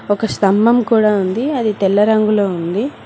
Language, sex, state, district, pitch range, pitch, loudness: Telugu, female, Telangana, Mahabubabad, 200-225 Hz, 215 Hz, -15 LUFS